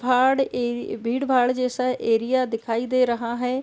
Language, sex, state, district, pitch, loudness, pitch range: Hindi, female, Uttar Pradesh, Deoria, 250 Hz, -23 LUFS, 235-255 Hz